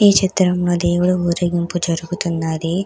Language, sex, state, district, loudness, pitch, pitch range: Telugu, female, Telangana, Hyderabad, -18 LUFS, 175 Hz, 170-180 Hz